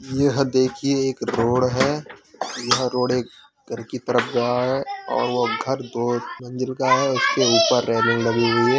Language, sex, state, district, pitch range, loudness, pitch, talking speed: Hindi, male, Uttar Pradesh, Hamirpur, 120-135 Hz, -21 LUFS, 125 Hz, 185 wpm